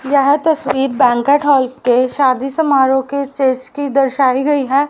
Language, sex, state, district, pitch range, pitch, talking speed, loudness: Hindi, female, Haryana, Rohtak, 260-285 Hz, 275 Hz, 160 wpm, -14 LUFS